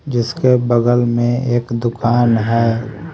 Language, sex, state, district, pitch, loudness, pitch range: Hindi, male, Haryana, Rohtak, 120 Hz, -16 LUFS, 115-125 Hz